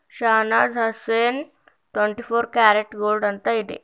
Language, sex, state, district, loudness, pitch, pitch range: Kannada, female, Karnataka, Bidar, -20 LUFS, 225 Hz, 210-235 Hz